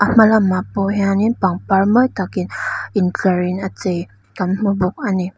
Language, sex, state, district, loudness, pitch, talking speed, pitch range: Mizo, female, Mizoram, Aizawl, -17 LUFS, 195 Hz, 145 wpm, 185-205 Hz